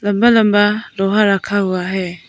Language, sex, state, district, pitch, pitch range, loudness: Hindi, female, Arunachal Pradesh, Papum Pare, 205 Hz, 190-210 Hz, -15 LUFS